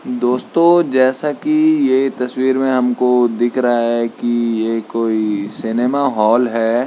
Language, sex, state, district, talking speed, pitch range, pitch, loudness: Hindi, male, Uttarakhand, Tehri Garhwal, 140 wpm, 115-130 Hz, 125 Hz, -16 LUFS